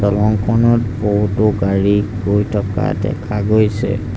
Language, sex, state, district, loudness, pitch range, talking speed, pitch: Assamese, male, Assam, Sonitpur, -16 LUFS, 100-110 Hz, 100 wpm, 105 Hz